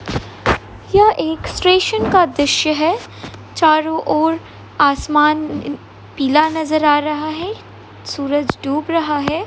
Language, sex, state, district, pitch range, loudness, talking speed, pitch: Hindi, female, Jharkhand, Sahebganj, 295-330 Hz, -16 LUFS, 115 wpm, 310 Hz